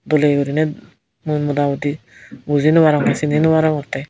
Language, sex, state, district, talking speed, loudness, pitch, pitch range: Chakma, female, Tripura, Unakoti, 130 wpm, -17 LUFS, 150 Hz, 145-155 Hz